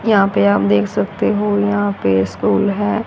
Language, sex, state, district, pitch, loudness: Hindi, female, Haryana, Rohtak, 200 Hz, -16 LUFS